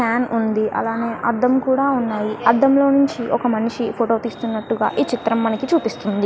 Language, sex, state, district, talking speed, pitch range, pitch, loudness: Telugu, female, Andhra Pradesh, Guntur, 165 wpm, 225-255 Hz, 230 Hz, -19 LUFS